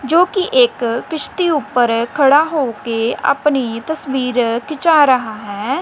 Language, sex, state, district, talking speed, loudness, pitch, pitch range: Punjabi, female, Punjab, Kapurthala, 135 wpm, -16 LUFS, 270 Hz, 235-315 Hz